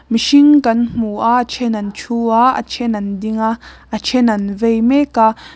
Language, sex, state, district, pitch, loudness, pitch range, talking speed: Mizo, female, Mizoram, Aizawl, 230 Hz, -14 LUFS, 220-250 Hz, 205 wpm